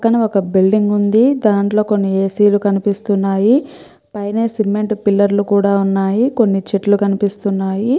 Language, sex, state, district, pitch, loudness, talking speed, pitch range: Telugu, female, Andhra Pradesh, Chittoor, 205 Hz, -15 LUFS, 135 wpm, 200-215 Hz